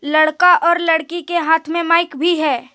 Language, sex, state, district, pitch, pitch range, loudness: Hindi, female, Jharkhand, Deoghar, 335 Hz, 310-345 Hz, -15 LUFS